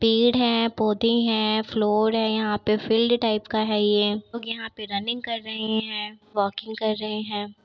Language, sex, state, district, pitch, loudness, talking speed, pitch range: Hindi, female, Bihar, Begusarai, 220 Hz, -24 LUFS, 190 wpm, 215-225 Hz